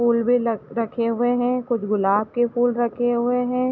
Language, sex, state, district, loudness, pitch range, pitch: Hindi, female, Uttar Pradesh, Hamirpur, -21 LUFS, 230-245 Hz, 240 Hz